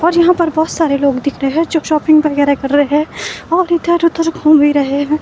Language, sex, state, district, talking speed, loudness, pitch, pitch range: Hindi, female, Himachal Pradesh, Shimla, 240 wpm, -13 LUFS, 305 Hz, 285-330 Hz